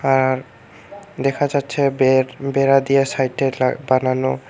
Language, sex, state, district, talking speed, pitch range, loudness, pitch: Bengali, male, Tripura, Unakoti, 120 wpm, 130-140 Hz, -18 LUFS, 135 Hz